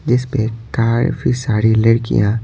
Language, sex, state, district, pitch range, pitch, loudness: Hindi, male, Bihar, Patna, 110-125 Hz, 115 Hz, -16 LUFS